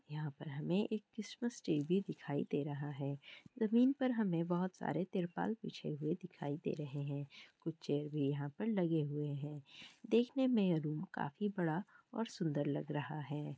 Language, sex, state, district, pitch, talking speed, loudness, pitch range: Hindi, female, Bihar, Kishanganj, 165 Hz, 170 wpm, -39 LUFS, 145-210 Hz